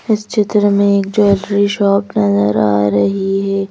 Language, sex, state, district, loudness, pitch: Hindi, female, Madhya Pradesh, Bhopal, -14 LUFS, 200 Hz